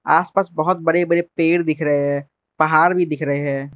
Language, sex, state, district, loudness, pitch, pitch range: Hindi, male, Arunachal Pradesh, Lower Dibang Valley, -18 LUFS, 155 Hz, 145-170 Hz